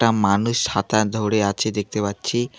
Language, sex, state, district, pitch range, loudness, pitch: Bengali, male, West Bengal, Alipurduar, 100-115 Hz, -21 LUFS, 110 Hz